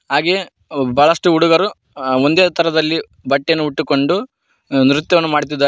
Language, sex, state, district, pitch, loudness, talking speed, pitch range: Kannada, male, Karnataka, Koppal, 155 Hz, -15 LUFS, 115 wpm, 140-170 Hz